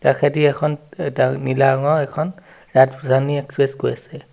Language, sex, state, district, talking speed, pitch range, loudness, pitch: Assamese, male, Assam, Sonitpur, 165 wpm, 135-150 Hz, -19 LUFS, 140 Hz